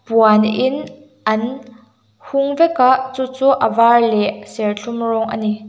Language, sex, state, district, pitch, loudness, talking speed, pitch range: Mizo, female, Mizoram, Aizawl, 235 Hz, -16 LUFS, 135 wpm, 220-260 Hz